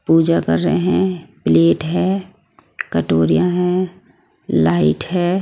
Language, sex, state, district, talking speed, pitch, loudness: Hindi, female, Maharashtra, Gondia, 110 wpm, 140 Hz, -17 LUFS